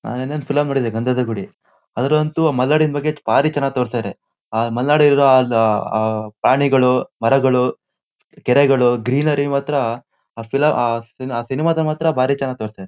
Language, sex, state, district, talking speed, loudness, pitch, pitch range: Kannada, male, Karnataka, Shimoga, 150 wpm, -17 LUFS, 130 Hz, 115-145 Hz